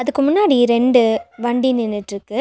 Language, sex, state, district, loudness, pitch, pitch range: Tamil, female, Tamil Nadu, Nilgiris, -16 LUFS, 245 Hz, 225-275 Hz